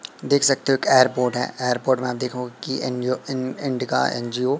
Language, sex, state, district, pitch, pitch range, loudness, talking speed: Hindi, male, Madhya Pradesh, Katni, 130 Hz, 125-135 Hz, -22 LUFS, 195 wpm